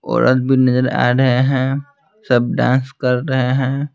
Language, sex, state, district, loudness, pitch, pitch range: Hindi, male, Bihar, Patna, -16 LUFS, 130 Hz, 125-135 Hz